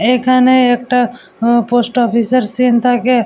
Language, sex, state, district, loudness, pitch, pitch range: Bengali, female, West Bengal, Jalpaiguri, -13 LUFS, 245 Hz, 240-250 Hz